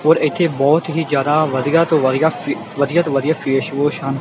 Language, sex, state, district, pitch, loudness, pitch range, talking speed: Punjabi, male, Punjab, Kapurthala, 150 Hz, -17 LUFS, 135-160 Hz, 200 wpm